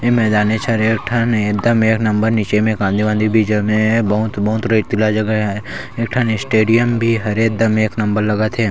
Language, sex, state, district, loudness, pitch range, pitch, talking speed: Chhattisgarhi, male, Chhattisgarh, Sarguja, -16 LUFS, 105-115 Hz, 110 Hz, 205 wpm